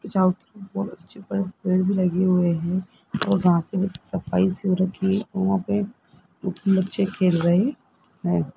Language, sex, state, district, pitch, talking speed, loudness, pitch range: Hindi, female, Rajasthan, Jaipur, 190 Hz, 175 wpm, -23 LUFS, 185-195 Hz